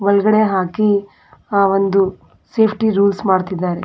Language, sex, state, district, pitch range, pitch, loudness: Kannada, female, Karnataka, Dakshina Kannada, 190-210 Hz, 200 Hz, -16 LUFS